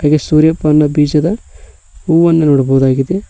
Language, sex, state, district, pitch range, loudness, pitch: Kannada, male, Karnataka, Koppal, 145-165 Hz, -11 LUFS, 150 Hz